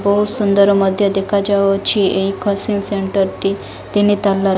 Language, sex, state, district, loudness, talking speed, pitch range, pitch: Odia, female, Odisha, Malkangiri, -15 LUFS, 145 wpm, 195-205 Hz, 200 Hz